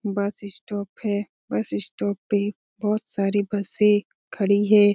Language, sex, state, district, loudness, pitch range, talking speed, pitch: Hindi, female, Bihar, Lakhisarai, -24 LUFS, 200-210 Hz, 135 wpm, 205 Hz